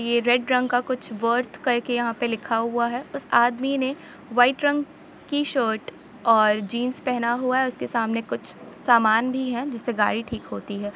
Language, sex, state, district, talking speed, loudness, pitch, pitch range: Hindi, female, Jharkhand, Sahebganj, 190 wpm, -23 LUFS, 245 Hz, 230-260 Hz